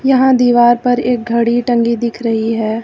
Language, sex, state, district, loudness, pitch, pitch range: Hindi, female, Uttar Pradesh, Lucknow, -13 LUFS, 240 Hz, 230-245 Hz